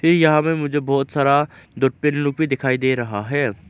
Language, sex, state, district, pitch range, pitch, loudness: Hindi, male, Arunachal Pradesh, Lower Dibang Valley, 130-150 Hz, 140 Hz, -19 LUFS